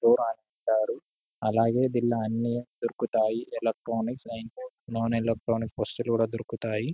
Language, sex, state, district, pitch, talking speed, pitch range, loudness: Telugu, male, Telangana, Karimnagar, 115 Hz, 105 wpm, 115-120 Hz, -29 LUFS